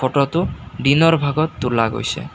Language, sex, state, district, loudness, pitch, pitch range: Assamese, male, Assam, Kamrup Metropolitan, -18 LUFS, 140 Hz, 130-160 Hz